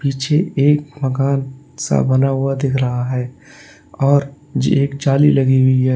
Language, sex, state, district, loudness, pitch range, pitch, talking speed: Hindi, male, Uttar Pradesh, Lalitpur, -16 LUFS, 135-145 Hz, 135 Hz, 170 wpm